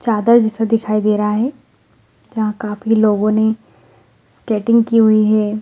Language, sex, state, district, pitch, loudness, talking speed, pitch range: Hindi, female, Bihar, Gaya, 215 Hz, -15 LUFS, 150 wpm, 210-225 Hz